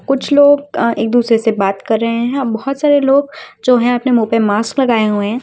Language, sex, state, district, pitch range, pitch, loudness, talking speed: Hindi, female, Uttar Pradesh, Lucknow, 225-275 Hz, 240 Hz, -14 LUFS, 245 wpm